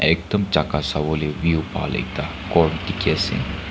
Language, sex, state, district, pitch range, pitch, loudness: Nagamese, male, Nagaland, Kohima, 75-90 Hz, 80 Hz, -22 LUFS